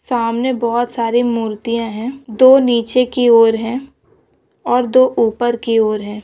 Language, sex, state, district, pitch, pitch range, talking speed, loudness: Hindi, female, West Bengal, Jalpaiguri, 235 Hz, 230-250 Hz, 155 wpm, -15 LUFS